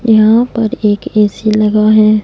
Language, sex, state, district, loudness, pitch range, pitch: Hindi, female, Punjab, Fazilka, -11 LUFS, 215-225 Hz, 215 Hz